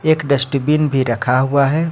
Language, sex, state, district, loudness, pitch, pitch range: Hindi, male, Jharkhand, Ranchi, -16 LUFS, 140 Hz, 130-155 Hz